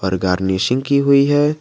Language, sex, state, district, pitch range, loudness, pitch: Hindi, male, Jharkhand, Garhwa, 95-140 Hz, -16 LUFS, 130 Hz